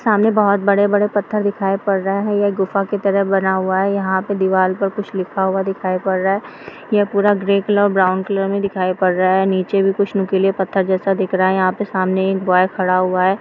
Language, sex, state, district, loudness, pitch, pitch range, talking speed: Hindi, female, Bihar, Kishanganj, -17 LUFS, 195 Hz, 190-200 Hz, 230 wpm